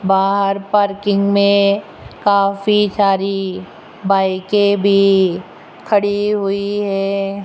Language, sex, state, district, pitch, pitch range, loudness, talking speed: Hindi, female, Rajasthan, Jaipur, 200 Hz, 195-205 Hz, -15 LUFS, 80 wpm